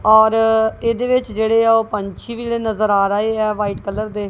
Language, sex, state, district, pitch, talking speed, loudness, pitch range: Punjabi, female, Punjab, Kapurthala, 220 Hz, 210 wpm, -17 LUFS, 210-225 Hz